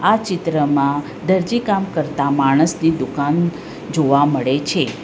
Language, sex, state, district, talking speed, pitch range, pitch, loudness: Gujarati, female, Gujarat, Valsad, 105 wpm, 140-175 Hz, 155 Hz, -18 LUFS